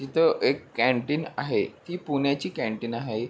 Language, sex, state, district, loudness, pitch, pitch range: Marathi, male, Maharashtra, Pune, -27 LUFS, 140 Hz, 115-150 Hz